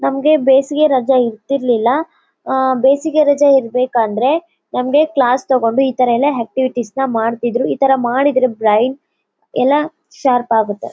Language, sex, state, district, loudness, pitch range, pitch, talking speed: Kannada, female, Karnataka, Bellary, -15 LUFS, 240-285 Hz, 260 Hz, 125 wpm